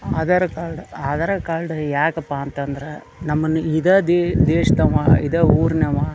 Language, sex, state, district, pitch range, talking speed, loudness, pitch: Kannada, male, Karnataka, Dharwad, 150-170 Hz, 115 wpm, -19 LUFS, 160 Hz